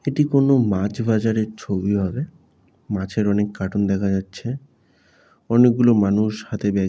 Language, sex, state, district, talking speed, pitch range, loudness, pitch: Bengali, male, West Bengal, Jalpaiguri, 140 wpm, 100-120 Hz, -20 LUFS, 105 Hz